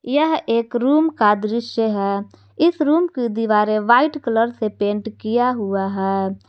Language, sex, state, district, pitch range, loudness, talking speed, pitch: Hindi, female, Jharkhand, Garhwa, 210-250 Hz, -19 LUFS, 155 wpm, 225 Hz